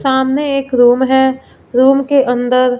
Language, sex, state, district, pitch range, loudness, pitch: Hindi, female, Punjab, Fazilka, 250-275 Hz, -12 LUFS, 265 Hz